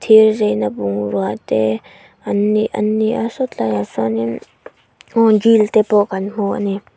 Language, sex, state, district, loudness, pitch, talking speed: Mizo, female, Mizoram, Aizawl, -16 LUFS, 205 Hz, 170 wpm